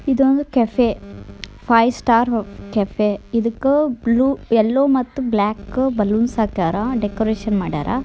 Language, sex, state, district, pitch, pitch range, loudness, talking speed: Kannada, male, Karnataka, Dharwad, 230 Hz, 210-255 Hz, -18 LUFS, 110 wpm